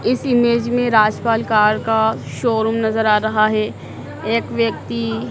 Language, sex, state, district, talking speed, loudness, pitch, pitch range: Hindi, female, Madhya Pradesh, Dhar, 145 wpm, -17 LUFS, 220 Hz, 215-230 Hz